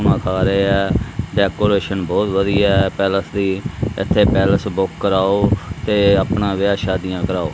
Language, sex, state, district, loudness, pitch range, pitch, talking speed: Punjabi, male, Punjab, Kapurthala, -17 LUFS, 95-100 Hz, 100 Hz, 135 wpm